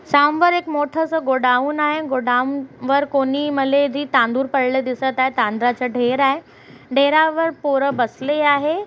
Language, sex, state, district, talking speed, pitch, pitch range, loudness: Marathi, female, Maharashtra, Chandrapur, 120 wpm, 275 Hz, 260-295 Hz, -18 LUFS